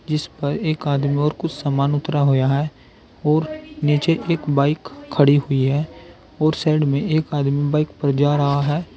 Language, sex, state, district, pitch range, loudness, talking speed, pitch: Hindi, male, Uttar Pradesh, Saharanpur, 140-155 Hz, -20 LUFS, 185 wpm, 145 Hz